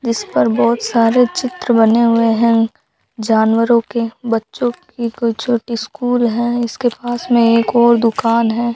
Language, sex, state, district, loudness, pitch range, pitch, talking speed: Hindi, female, Rajasthan, Bikaner, -15 LUFS, 230-240 Hz, 235 Hz, 155 wpm